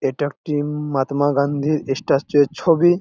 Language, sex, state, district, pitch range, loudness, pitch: Bengali, male, West Bengal, Jalpaiguri, 140-150 Hz, -19 LUFS, 145 Hz